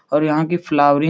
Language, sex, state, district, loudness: Hindi, male, Uttar Pradesh, Etah, -17 LUFS